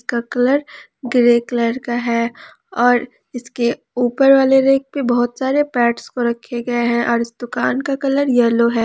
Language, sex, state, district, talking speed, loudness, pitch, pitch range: Hindi, female, Jharkhand, Palamu, 165 wpm, -17 LUFS, 245 Hz, 235-270 Hz